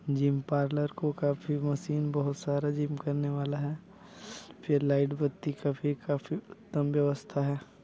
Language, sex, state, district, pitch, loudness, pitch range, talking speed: Hindi, male, Chhattisgarh, Balrampur, 145 Hz, -31 LUFS, 140-150 Hz, 160 wpm